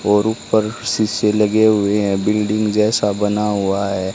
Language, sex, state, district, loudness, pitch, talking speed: Hindi, male, Haryana, Charkhi Dadri, -17 LUFS, 105 Hz, 160 wpm